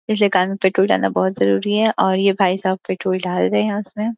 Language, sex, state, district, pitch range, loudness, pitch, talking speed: Hindi, female, Uttar Pradesh, Gorakhpur, 140-205 Hz, -18 LUFS, 190 Hz, 245 wpm